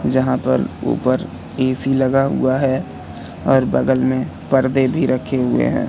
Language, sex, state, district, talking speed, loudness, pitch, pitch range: Hindi, male, Madhya Pradesh, Katni, 155 wpm, -18 LUFS, 130 Hz, 130-135 Hz